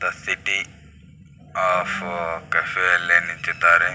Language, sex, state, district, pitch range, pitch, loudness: Kannada, male, Karnataka, Belgaum, 85-90 Hz, 85 Hz, -20 LUFS